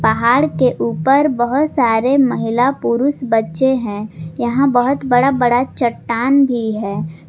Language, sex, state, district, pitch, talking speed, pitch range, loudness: Hindi, female, Jharkhand, Garhwa, 245 Hz, 130 wpm, 225-265 Hz, -15 LUFS